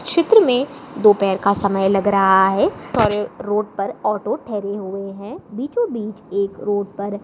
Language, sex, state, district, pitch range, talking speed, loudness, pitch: Hindi, female, Chhattisgarh, Jashpur, 195-220 Hz, 160 wpm, -18 LUFS, 205 Hz